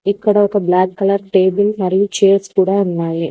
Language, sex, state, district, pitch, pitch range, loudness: Telugu, female, Telangana, Hyderabad, 195 Hz, 185-200 Hz, -15 LUFS